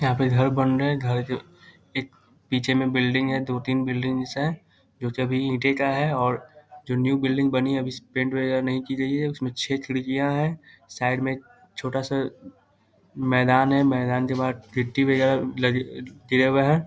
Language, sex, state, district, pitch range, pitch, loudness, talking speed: Hindi, male, Bihar, Muzaffarpur, 130-135 Hz, 130 Hz, -24 LUFS, 190 wpm